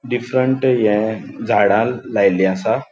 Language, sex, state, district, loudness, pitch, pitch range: Konkani, male, Goa, North and South Goa, -17 LUFS, 110 Hz, 100-130 Hz